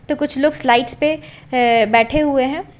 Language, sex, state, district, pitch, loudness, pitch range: Hindi, female, Uttar Pradesh, Lucknow, 270 Hz, -16 LUFS, 240-300 Hz